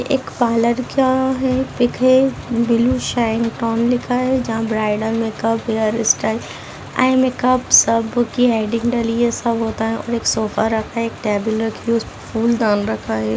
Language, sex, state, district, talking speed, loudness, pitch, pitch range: Hindi, female, Bihar, Vaishali, 160 wpm, -18 LUFS, 230 Hz, 225-245 Hz